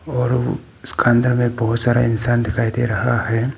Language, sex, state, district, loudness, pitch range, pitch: Hindi, male, Arunachal Pradesh, Papum Pare, -18 LUFS, 115-125 Hz, 120 Hz